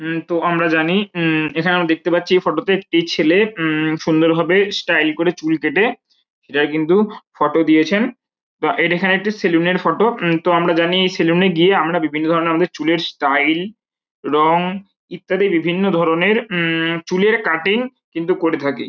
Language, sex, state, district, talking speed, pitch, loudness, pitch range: Bengali, female, West Bengal, Kolkata, 170 wpm, 170 Hz, -16 LUFS, 160-185 Hz